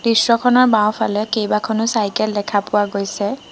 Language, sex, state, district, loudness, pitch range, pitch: Assamese, female, Assam, Sonitpur, -17 LUFS, 205-230 Hz, 215 Hz